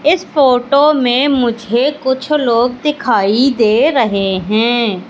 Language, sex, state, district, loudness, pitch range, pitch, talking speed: Hindi, female, Madhya Pradesh, Katni, -13 LUFS, 225-280 Hz, 250 Hz, 120 wpm